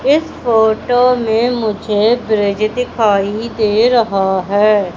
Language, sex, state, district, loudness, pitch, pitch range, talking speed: Hindi, female, Madhya Pradesh, Umaria, -14 LUFS, 220 Hz, 205-240 Hz, 110 wpm